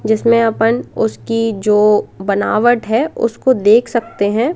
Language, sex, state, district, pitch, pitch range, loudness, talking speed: Hindi, female, Madhya Pradesh, Katni, 225 Hz, 215-235 Hz, -14 LUFS, 130 wpm